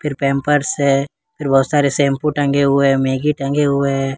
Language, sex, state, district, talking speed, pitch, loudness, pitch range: Hindi, male, Jharkhand, Ranchi, 185 wpm, 140 Hz, -16 LUFS, 135-145 Hz